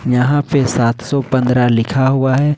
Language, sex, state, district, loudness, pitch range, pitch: Hindi, male, Jharkhand, Ranchi, -14 LUFS, 125-140 Hz, 130 Hz